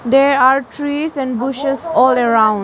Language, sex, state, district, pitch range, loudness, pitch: English, female, Arunachal Pradesh, Lower Dibang Valley, 250-280 Hz, -15 LUFS, 270 Hz